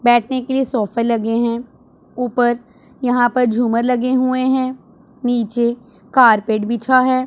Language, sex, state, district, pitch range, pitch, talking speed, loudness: Hindi, female, Punjab, Pathankot, 235-255 Hz, 245 Hz, 140 wpm, -17 LUFS